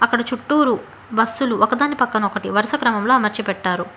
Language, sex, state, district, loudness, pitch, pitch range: Telugu, female, Telangana, Hyderabad, -19 LUFS, 230 Hz, 210-250 Hz